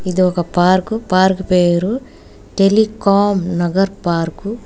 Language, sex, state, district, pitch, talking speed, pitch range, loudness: Telugu, female, Telangana, Hyderabad, 190 Hz, 105 wpm, 175-205 Hz, -15 LUFS